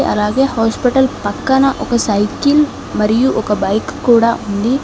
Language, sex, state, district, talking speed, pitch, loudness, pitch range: Telugu, female, Telangana, Mahabubabad, 125 wpm, 235 Hz, -14 LUFS, 210-265 Hz